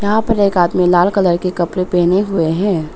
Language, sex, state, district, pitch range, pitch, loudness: Hindi, female, Arunachal Pradesh, Papum Pare, 175-195 Hz, 180 Hz, -14 LUFS